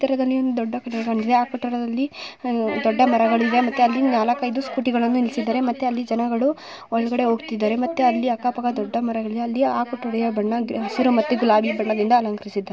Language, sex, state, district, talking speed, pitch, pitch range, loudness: Kannada, female, Karnataka, Mysore, 165 wpm, 240 Hz, 225-250 Hz, -21 LUFS